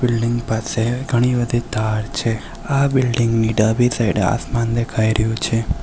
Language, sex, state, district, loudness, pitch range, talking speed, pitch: Gujarati, male, Gujarat, Valsad, -19 LUFS, 110-120 Hz, 165 wpm, 115 Hz